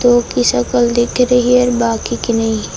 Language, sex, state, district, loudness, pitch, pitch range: Hindi, female, Uttar Pradesh, Lucknow, -14 LUFS, 240 Hz, 225-245 Hz